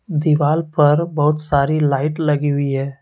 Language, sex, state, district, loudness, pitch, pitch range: Hindi, male, Jharkhand, Deoghar, -17 LUFS, 150 Hz, 140-155 Hz